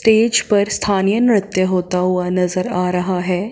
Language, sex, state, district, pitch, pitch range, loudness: Hindi, female, Chandigarh, Chandigarh, 185 Hz, 180-205 Hz, -17 LUFS